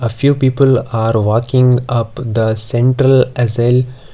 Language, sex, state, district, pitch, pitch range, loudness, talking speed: English, male, Karnataka, Bangalore, 125 Hz, 115-130 Hz, -13 LUFS, 130 wpm